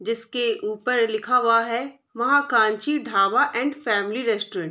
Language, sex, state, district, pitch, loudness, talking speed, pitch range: Hindi, female, Bihar, Vaishali, 230 Hz, -22 LUFS, 140 wpm, 215-250 Hz